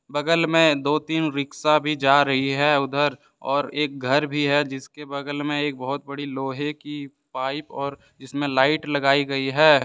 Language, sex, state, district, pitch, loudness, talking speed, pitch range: Hindi, male, Jharkhand, Deoghar, 145 Hz, -22 LUFS, 185 wpm, 135-150 Hz